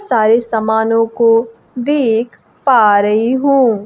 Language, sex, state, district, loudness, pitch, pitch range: Hindi, female, Bihar, Kaimur, -13 LUFS, 230 Hz, 220-245 Hz